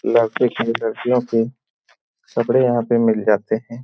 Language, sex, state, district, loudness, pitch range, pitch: Hindi, male, Bihar, Jamui, -19 LUFS, 115-120 Hz, 115 Hz